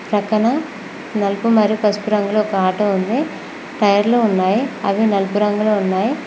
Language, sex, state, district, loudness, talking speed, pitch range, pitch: Telugu, female, Telangana, Mahabubabad, -17 LUFS, 145 wpm, 200-225 Hz, 210 Hz